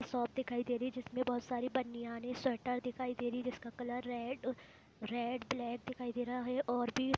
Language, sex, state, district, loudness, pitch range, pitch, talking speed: Hindi, female, Chhattisgarh, Bilaspur, -39 LUFS, 240-255 Hz, 245 Hz, 210 wpm